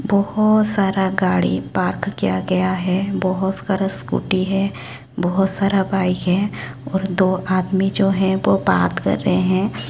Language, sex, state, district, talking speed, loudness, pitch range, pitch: Hindi, male, Chhattisgarh, Raipur, 150 wpm, -19 LUFS, 185-195 Hz, 190 Hz